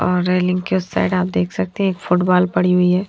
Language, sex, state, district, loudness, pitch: Hindi, female, Himachal Pradesh, Shimla, -18 LUFS, 180 Hz